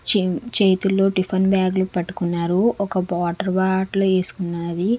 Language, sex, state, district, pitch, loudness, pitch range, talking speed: Telugu, female, Andhra Pradesh, Sri Satya Sai, 190 Hz, -20 LUFS, 180-195 Hz, 110 wpm